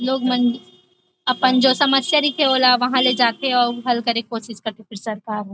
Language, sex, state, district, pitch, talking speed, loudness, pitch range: Chhattisgarhi, female, Chhattisgarh, Rajnandgaon, 250 Hz, 225 wpm, -18 LUFS, 230-260 Hz